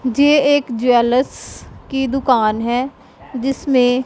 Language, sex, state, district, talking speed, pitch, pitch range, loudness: Hindi, female, Punjab, Pathankot, 105 wpm, 255 Hz, 245-270 Hz, -16 LUFS